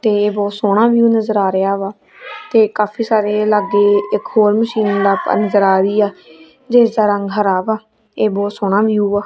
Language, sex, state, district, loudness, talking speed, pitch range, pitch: Punjabi, female, Punjab, Kapurthala, -15 LUFS, 190 wpm, 200-220 Hz, 210 Hz